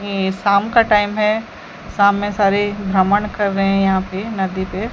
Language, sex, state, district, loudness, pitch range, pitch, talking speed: Hindi, female, Odisha, Sambalpur, -17 LUFS, 195-205 Hz, 200 Hz, 195 wpm